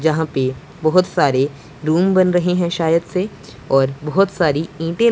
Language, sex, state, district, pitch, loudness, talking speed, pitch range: Hindi, male, Punjab, Pathankot, 165 Hz, -18 LUFS, 165 wpm, 145-180 Hz